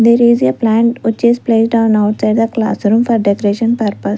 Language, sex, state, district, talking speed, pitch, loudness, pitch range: English, female, Punjab, Fazilka, 200 wpm, 225 Hz, -13 LUFS, 210-230 Hz